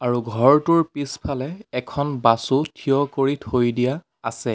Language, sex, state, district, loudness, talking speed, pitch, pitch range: Assamese, male, Assam, Sonitpur, -21 LUFS, 130 wpm, 135 Hz, 120-145 Hz